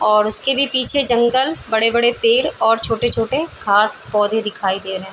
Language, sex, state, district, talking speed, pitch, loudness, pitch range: Hindi, female, Chhattisgarh, Bilaspur, 210 wpm, 225 Hz, -15 LUFS, 210-260 Hz